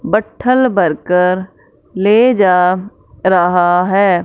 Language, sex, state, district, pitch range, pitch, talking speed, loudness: Hindi, female, Punjab, Fazilka, 180-210 Hz, 190 Hz, 85 wpm, -13 LUFS